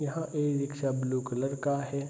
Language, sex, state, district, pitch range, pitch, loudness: Hindi, male, Bihar, Saharsa, 135-145 Hz, 140 Hz, -31 LUFS